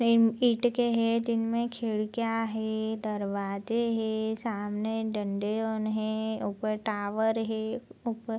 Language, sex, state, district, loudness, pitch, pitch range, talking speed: Hindi, female, Bihar, Araria, -30 LUFS, 220 Hz, 215-230 Hz, 115 wpm